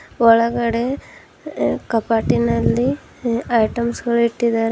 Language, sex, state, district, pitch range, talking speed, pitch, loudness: Kannada, female, Karnataka, Bidar, 225-235 Hz, 75 wpm, 235 Hz, -18 LUFS